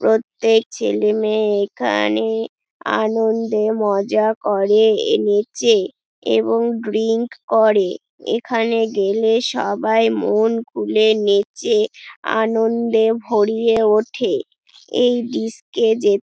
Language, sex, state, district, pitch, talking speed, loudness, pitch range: Bengali, female, West Bengal, Dakshin Dinajpur, 225 Hz, 90 wpm, -18 LUFS, 215-230 Hz